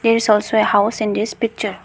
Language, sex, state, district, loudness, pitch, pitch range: English, female, Arunachal Pradesh, Lower Dibang Valley, -17 LUFS, 215 Hz, 210-230 Hz